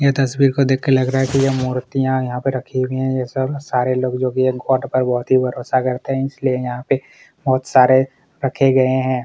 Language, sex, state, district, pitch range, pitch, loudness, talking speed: Hindi, male, Chhattisgarh, Kabirdham, 130-135 Hz, 130 Hz, -18 LUFS, 260 wpm